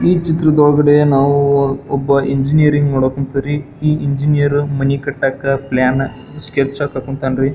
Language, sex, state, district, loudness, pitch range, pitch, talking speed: Kannada, male, Karnataka, Belgaum, -15 LUFS, 135-145 Hz, 140 Hz, 120 wpm